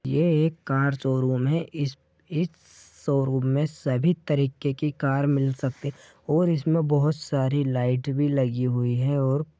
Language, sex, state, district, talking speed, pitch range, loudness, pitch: Hindi, male, Bihar, Darbhanga, 160 wpm, 130-150 Hz, -25 LUFS, 140 Hz